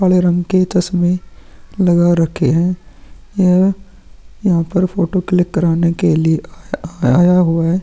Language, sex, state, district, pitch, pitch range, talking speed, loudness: Hindi, male, Uttarakhand, Tehri Garhwal, 175 Hz, 170-185 Hz, 145 wpm, -15 LUFS